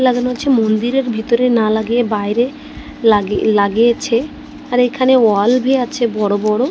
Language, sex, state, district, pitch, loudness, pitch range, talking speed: Bengali, female, Odisha, Malkangiri, 240 Hz, -15 LUFS, 220-255 Hz, 145 wpm